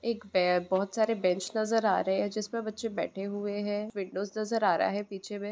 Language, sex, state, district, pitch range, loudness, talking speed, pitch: Hindi, female, West Bengal, Purulia, 190-220 Hz, -30 LUFS, 220 wpm, 205 Hz